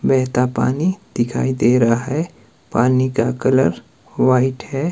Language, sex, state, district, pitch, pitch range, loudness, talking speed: Hindi, male, Himachal Pradesh, Shimla, 130 Hz, 125-135 Hz, -18 LUFS, 135 wpm